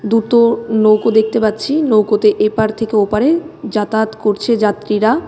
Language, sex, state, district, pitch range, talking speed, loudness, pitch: Bengali, female, West Bengal, Cooch Behar, 210-230 Hz, 125 wpm, -14 LUFS, 220 Hz